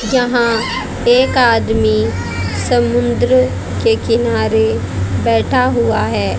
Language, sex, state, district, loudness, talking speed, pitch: Hindi, female, Haryana, Jhajjar, -14 LUFS, 85 wpm, 110 Hz